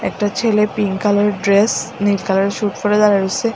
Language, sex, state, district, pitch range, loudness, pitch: Bengali, female, Tripura, West Tripura, 200-210 Hz, -16 LUFS, 205 Hz